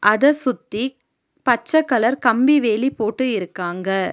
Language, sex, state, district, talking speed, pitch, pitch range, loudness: Tamil, female, Tamil Nadu, Nilgiris, 115 wpm, 245 Hz, 215-265 Hz, -19 LUFS